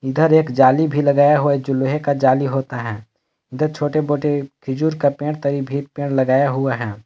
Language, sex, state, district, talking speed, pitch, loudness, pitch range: Hindi, male, Jharkhand, Palamu, 205 wpm, 140 Hz, -18 LUFS, 130-145 Hz